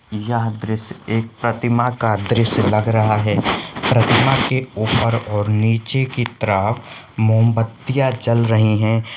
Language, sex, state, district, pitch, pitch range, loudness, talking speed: Hindi, male, Jharkhand, Sahebganj, 115 Hz, 110-120 Hz, -17 LUFS, 130 wpm